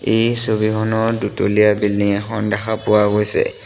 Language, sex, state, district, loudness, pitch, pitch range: Assamese, male, Assam, Sonitpur, -16 LUFS, 110 Hz, 105-110 Hz